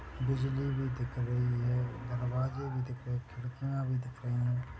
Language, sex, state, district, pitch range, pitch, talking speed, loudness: Hindi, male, Chhattisgarh, Bilaspur, 125-130 Hz, 125 Hz, 175 wpm, -35 LUFS